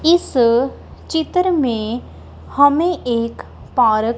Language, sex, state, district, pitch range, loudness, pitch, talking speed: Hindi, female, Punjab, Kapurthala, 230-320 Hz, -17 LUFS, 255 Hz, 100 wpm